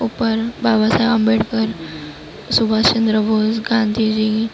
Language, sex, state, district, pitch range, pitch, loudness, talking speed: Gujarati, female, Maharashtra, Mumbai Suburban, 215-225 Hz, 220 Hz, -17 LUFS, 120 wpm